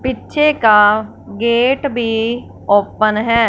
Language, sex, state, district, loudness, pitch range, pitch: Hindi, female, Punjab, Fazilka, -14 LUFS, 215-255 Hz, 230 Hz